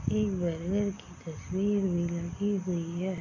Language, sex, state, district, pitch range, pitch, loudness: Hindi, female, Bihar, Gopalganj, 170-200 Hz, 185 Hz, -31 LUFS